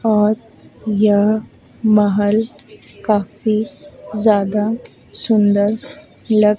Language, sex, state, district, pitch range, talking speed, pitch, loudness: Hindi, female, Madhya Pradesh, Dhar, 210-220 Hz, 65 wpm, 215 Hz, -17 LUFS